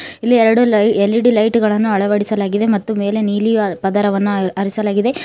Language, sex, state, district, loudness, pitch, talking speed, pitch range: Kannada, female, Karnataka, Koppal, -15 LUFS, 210 Hz, 135 wpm, 205-225 Hz